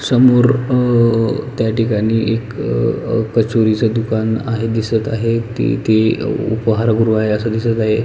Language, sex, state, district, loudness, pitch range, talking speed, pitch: Marathi, male, Maharashtra, Pune, -16 LUFS, 110-115 Hz, 135 wpm, 115 Hz